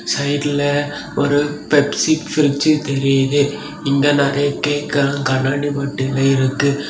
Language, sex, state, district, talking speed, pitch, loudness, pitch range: Tamil, male, Tamil Nadu, Kanyakumari, 95 wpm, 145 Hz, -17 LUFS, 140-145 Hz